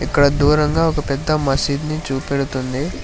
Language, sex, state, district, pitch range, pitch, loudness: Telugu, male, Telangana, Hyderabad, 135-150 Hz, 140 Hz, -18 LUFS